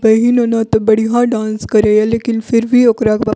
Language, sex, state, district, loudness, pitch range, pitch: Maithili, female, Bihar, Purnia, -13 LUFS, 215-235 Hz, 225 Hz